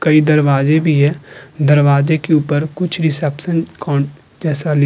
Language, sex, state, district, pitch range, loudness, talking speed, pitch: Hindi, female, Uttar Pradesh, Hamirpur, 145-160 Hz, -15 LUFS, 160 wpm, 150 Hz